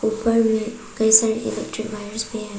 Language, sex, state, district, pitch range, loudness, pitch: Hindi, female, Arunachal Pradesh, Papum Pare, 220-225 Hz, -20 LUFS, 220 Hz